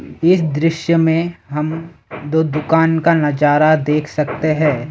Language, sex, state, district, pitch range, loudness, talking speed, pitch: Hindi, male, Assam, Sonitpur, 150-165 Hz, -16 LUFS, 135 wpm, 160 Hz